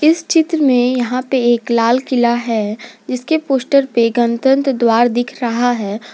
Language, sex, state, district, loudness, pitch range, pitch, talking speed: Hindi, female, Jharkhand, Garhwa, -15 LUFS, 235-265 Hz, 245 Hz, 155 wpm